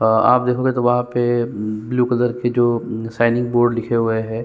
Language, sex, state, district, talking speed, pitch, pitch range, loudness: Hindi, male, Chhattisgarh, Sukma, 200 wpm, 120 Hz, 115-120 Hz, -18 LUFS